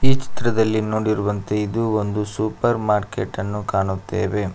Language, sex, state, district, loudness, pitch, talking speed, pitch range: Kannada, male, Karnataka, Koppal, -22 LUFS, 105 Hz, 120 wpm, 105-110 Hz